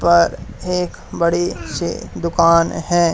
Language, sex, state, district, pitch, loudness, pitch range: Hindi, male, Haryana, Charkhi Dadri, 170 Hz, -18 LUFS, 170-175 Hz